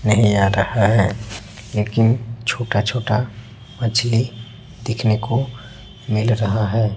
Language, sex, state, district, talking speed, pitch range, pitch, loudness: Hindi, male, Chhattisgarh, Raipur, 110 wpm, 105-120 Hz, 115 Hz, -19 LUFS